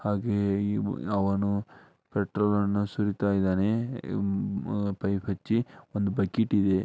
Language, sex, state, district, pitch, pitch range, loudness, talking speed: Kannada, male, Karnataka, Dharwad, 100 Hz, 100-105 Hz, -28 LUFS, 80 wpm